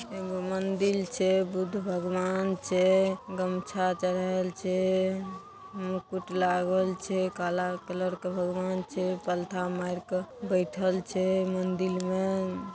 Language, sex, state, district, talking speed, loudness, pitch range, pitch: Maithili, female, Bihar, Darbhanga, 120 wpm, -30 LUFS, 185-190 Hz, 185 Hz